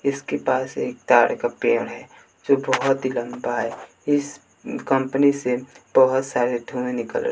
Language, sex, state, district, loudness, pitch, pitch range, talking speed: Hindi, male, Bihar, West Champaran, -22 LUFS, 130 Hz, 125-140 Hz, 155 wpm